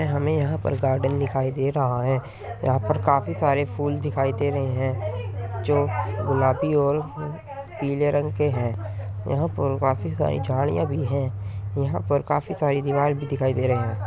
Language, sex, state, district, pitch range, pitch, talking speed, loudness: Hindi, male, Uttar Pradesh, Muzaffarnagar, 115-145 Hz, 135 Hz, 175 wpm, -24 LUFS